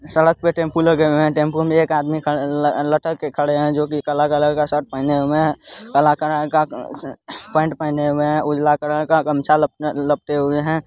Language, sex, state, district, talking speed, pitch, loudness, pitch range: Hindi, male, Bihar, Supaul, 220 wpm, 150 Hz, -18 LUFS, 145-155 Hz